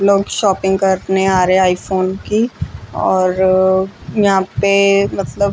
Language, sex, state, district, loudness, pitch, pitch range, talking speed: Hindi, female, Chandigarh, Chandigarh, -15 LUFS, 190 Hz, 185-200 Hz, 140 wpm